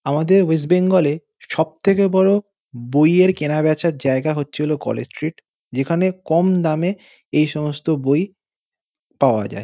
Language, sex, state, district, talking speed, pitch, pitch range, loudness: Bengali, male, West Bengal, North 24 Parganas, 135 wpm, 160 Hz, 150-185 Hz, -18 LUFS